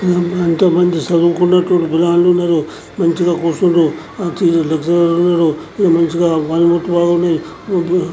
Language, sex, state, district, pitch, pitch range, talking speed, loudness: Telugu, male, Andhra Pradesh, Anantapur, 170 Hz, 165-175 Hz, 90 wpm, -14 LUFS